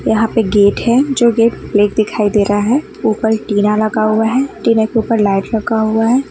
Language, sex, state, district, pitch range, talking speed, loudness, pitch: Hindi, female, West Bengal, Alipurduar, 210-230 Hz, 220 wpm, -14 LUFS, 220 Hz